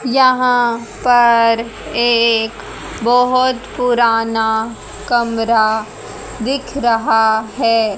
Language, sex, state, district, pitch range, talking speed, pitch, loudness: Hindi, female, Haryana, Jhajjar, 225-245 Hz, 70 wpm, 230 Hz, -15 LUFS